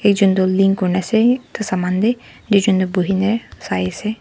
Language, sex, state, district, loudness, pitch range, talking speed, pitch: Nagamese, female, Nagaland, Dimapur, -17 LUFS, 185-215 Hz, 170 wpm, 195 Hz